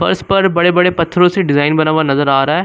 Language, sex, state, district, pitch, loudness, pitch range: Hindi, male, Uttar Pradesh, Lucknow, 170 Hz, -12 LUFS, 150-180 Hz